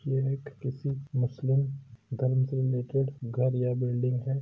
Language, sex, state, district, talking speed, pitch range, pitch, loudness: Hindi, male, Uttar Pradesh, Hamirpur, 150 wpm, 125-135 Hz, 130 Hz, -30 LUFS